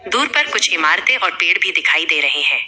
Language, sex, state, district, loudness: Hindi, female, Uttar Pradesh, Shamli, -14 LUFS